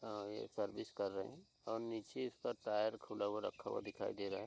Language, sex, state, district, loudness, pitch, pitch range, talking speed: Hindi, male, Uttar Pradesh, Hamirpur, -44 LUFS, 105 Hz, 100-110 Hz, 230 wpm